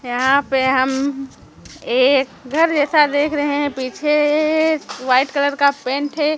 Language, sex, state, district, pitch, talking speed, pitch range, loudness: Hindi, female, Chhattisgarh, Raipur, 285 Hz, 150 wpm, 265-295 Hz, -17 LUFS